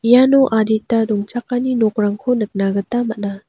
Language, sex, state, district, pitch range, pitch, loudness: Garo, female, Meghalaya, West Garo Hills, 205-245 Hz, 220 Hz, -17 LUFS